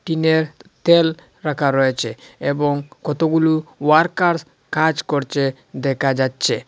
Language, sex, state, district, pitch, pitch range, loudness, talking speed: Bengali, male, Assam, Hailakandi, 150 Hz, 140-160 Hz, -19 LUFS, 100 wpm